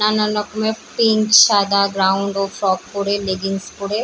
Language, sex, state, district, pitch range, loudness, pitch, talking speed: Bengali, female, West Bengal, Paschim Medinipur, 195-215 Hz, -17 LUFS, 200 Hz, 165 wpm